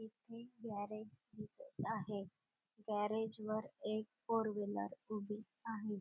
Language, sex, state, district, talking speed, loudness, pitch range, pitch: Marathi, female, Maharashtra, Dhule, 110 wpm, -44 LUFS, 210-220 Hz, 215 Hz